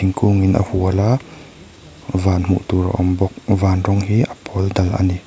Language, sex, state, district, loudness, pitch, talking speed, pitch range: Mizo, male, Mizoram, Aizawl, -18 LUFS, 95 Hz, 205 wpm, 95-100 Hz